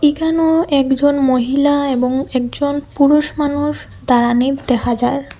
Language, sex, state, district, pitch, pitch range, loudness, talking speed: Bengali, female, Assam, Hailakandi, 280 Hz, 255-290 Hz, -15 LUFS, 110 wpm